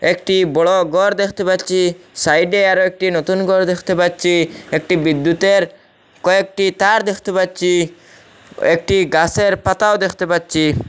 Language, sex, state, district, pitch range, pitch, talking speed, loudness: Bengali, male, Assam, Hailakandi, 170-195 Hz, 185 Hz, 125 wpm, -15 LUFS